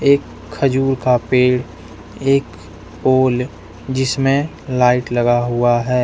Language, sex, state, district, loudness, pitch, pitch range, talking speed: Hindi, male, Jharkhand, Deoghar, -17 LUFS, 125 Hz, 120-130 Hz, 110 wpm